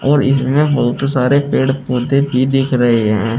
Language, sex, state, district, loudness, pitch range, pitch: Hindi, male, Uttar Pradesh, Shamli, -14 LUFS, 125-140 Hz, 130 Hz